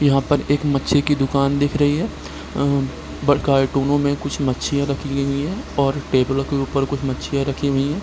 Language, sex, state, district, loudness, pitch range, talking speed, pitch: Hindi, male, Bihar, Gopalganj, -20 LUFS, 135-145 Hz, 195 wpm, 140 Hz